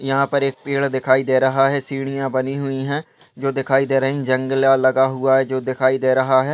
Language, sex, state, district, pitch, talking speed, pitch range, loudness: Hindi, male, Maharashtra, Pune, 135 Hz, 240 wpm, 130-135 Hz, -18 LUFS